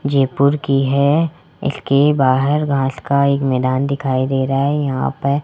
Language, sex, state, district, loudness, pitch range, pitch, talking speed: Hindi, male, Rajasthan, Jaipur, -17 LUFS, 135-140 Hz, 140 Hz, 175 wpm